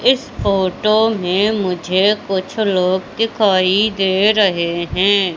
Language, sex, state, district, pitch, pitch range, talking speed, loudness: Hindi, female, Madhya Pradesh, Katni, 195 Hz, 185-215 Hz, 110 wpm, -16 LUFS